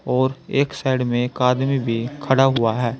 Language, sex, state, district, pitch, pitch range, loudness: Hindi, male, Uttar Pradesh, Saharanpur, 130 Hz, 120-135 Hz, -20 LUFS